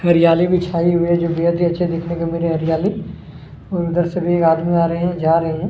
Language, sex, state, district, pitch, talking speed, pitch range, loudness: Hindi, male, Chhattisgarh, Kabirdham, 170 Hz, 285 wpm, 165-175 Hz, -17 LUFS